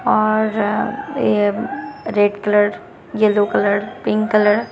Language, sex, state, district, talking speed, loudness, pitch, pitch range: Hindi, female, Bihar, Katihar, 115 wpm, -18 LUFS, 210 Hz, 205-220 Hz